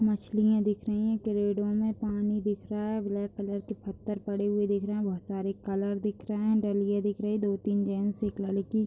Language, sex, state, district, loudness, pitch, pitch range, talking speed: Hindi, female, Uttar Pradesh, Deoria, -30 LUFS, 205 Hz, 200-215 Hz, 225 wpm